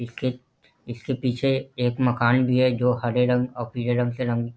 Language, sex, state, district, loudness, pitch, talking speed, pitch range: Hindi, male, Bihar, Jahanabad, -23 LUFS, 125 Hz, 210 wpm, 120-130 Hz